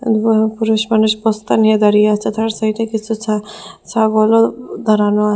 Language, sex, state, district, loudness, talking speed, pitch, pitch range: Bengali, female, Assam, Hailakandi, -15 LUFS, 190 wpm, 220 Hz, 215-220 Hz